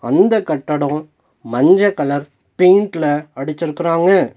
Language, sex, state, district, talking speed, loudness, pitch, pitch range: Tamil, male, Tamil Nadu, Nilgiris, 80 wpm, -16 LUFS, 155 Hz, 145-185 Hz